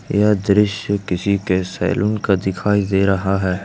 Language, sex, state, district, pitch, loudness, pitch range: Hindi, male, Jharkhand, Ranchi, 100 Hz, -18 LUFS, 95-105 Hz